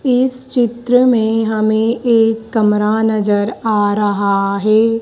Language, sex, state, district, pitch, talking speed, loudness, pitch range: Hindi, female, Madhya Pradesh, Dhar, 220 Hz, 120 wpm, -14 LUFS, 210-235 Hz